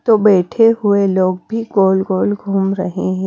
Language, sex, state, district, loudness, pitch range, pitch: Hindi, female, Punjab, Kapurthala, -15 LUFS, 190-215 Hz, 195 Hz